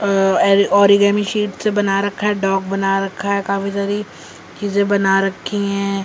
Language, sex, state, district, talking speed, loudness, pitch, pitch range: Hindi, female, Delhi, New Delhi, 160 wpm, -17 LUFS, 200 Hz, 195-205 Hz